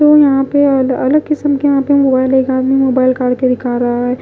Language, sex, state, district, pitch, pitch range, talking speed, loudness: Hindi, female, Punjab, Pathankot, 265 Hz, 255-285 Hz, 240 wpm, -12 LUFS